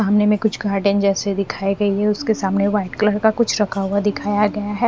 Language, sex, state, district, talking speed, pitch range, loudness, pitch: Hindi, female, Haryana, Rohtak, 235 wpm, 200-210 Hz, -19 LUFS, 205 Hz